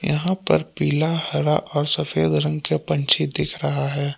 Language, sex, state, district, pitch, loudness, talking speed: Hindi, male, Jharkhand, Palamu, 145 Hz, -21 LUFS, 170 wpm